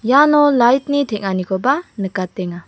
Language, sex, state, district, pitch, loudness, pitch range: Garo, female, Meghalaya, West Garo Hills, 230 Hz, -16 LUFS, 190-285 Hz